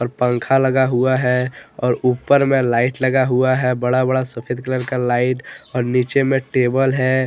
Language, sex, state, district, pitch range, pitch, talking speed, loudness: Hindi, male, Jharkhand, Deoghar, 125-130 Hz, 130 Hz, 180 wpm, -18 LUFS